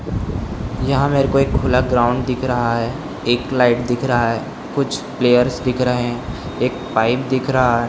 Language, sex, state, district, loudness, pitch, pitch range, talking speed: Hindi, male, Bihar, Samastipur, -18 LUFS, 125 Hz, 120-130 Hz, 180 wpm